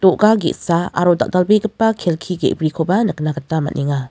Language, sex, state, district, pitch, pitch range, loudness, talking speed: Garo, female, Meghalaya, West Garo Hills, 175 Hz, 155-205 Hz, -17 LUFS, 115 wpm